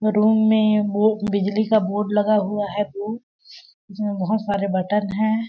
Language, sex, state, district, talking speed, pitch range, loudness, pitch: Hindi, female, Chhattisgarh, Balrampur, 185 wpm, 205-215 Hz, -21 LUFS, 210 Hz